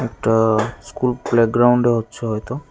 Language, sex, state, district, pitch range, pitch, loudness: Bengali, male, Tripura, West Tripura, 110-125 Hz, 115 Hz, -18 LUFS